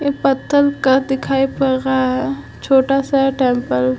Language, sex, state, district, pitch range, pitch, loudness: Hindi, female, Chhattisgarh, Sukma, 255-275 Hz, 270 Hz, -16 LUFS